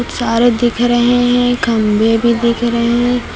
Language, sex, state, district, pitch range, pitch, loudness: Hindi, female, Uttar Pradesh, Lucknow, 235-245 Hz, 240 Hz, -13 LUFS